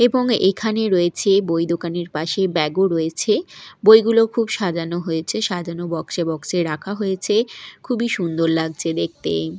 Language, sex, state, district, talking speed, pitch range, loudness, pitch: Bengali, female, Odisha, Malkangiri, 150 wpm, 165-215 Hz, -20 LUFS, 175 Hz